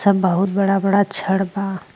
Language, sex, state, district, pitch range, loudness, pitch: Bhojpuri, female, Uttar Pradesh, Gorakhpur, 190-200 Hz, -18 LUFS, 195 Hz